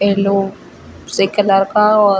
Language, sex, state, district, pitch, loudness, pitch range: Hindi, female, Chhattisgarh, Rajnandgaon, 200 Hz, -14 LUFS, 195-205 Hz